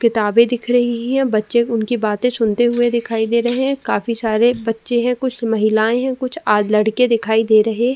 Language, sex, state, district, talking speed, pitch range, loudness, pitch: Hindi, female, Uttar Pradesh, Jyotiba Phule Nagar, 205 wpm, 220-245 Hz, -17 LUFS, 235 Hz